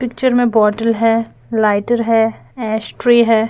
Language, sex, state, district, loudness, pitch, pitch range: Hindi, female, Bihar, Patna, -15 LUFS, 225 Hz, 220-240 Hz